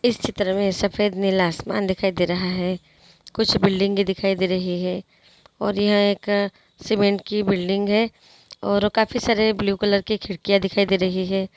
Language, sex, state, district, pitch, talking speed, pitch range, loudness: Hindi, female, Andhra Pradesh, Chittoor, 200 Hz, 175 wpm, 190-205 Hz, -21 LUFS